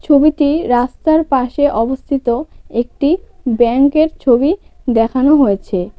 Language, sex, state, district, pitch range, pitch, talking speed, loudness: Bengali, female, West Bengal, Cooch Behar, 240-295 Hz, 270 Hz, 90 wpm, -14 LUFS